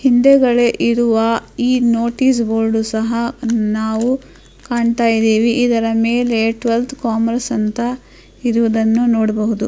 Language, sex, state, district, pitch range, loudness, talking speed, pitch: Kannada, female, Karnataka, Dharwad, 225-240 Hz, -16 LUFS, 105 wpm, 230 Hz